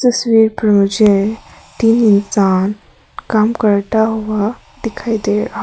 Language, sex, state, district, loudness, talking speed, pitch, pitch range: Hindi, female, Arunachal Pradesh, Papum Pare, -14 LUFS, 115 wpm, 215 Hz, 205-225 Hz